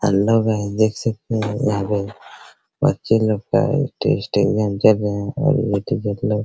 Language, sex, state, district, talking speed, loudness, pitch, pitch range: Hindi, male, Bihar, Araria, 140 wpm, -19 LUFS, 105 Hz, 100-115 Hz